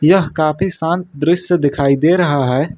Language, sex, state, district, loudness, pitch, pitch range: Hindi, male, Uttar Pradesh, Lucknow, -15 LUFS, 160 Hz, 145-175 Hz